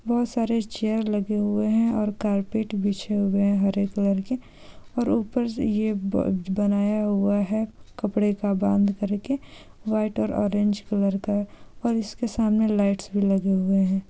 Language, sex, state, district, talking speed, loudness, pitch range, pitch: Hindi, female, Bihar, Saran, 160 wpm, -24 LUFS, 200-220 Hz, 205 Hz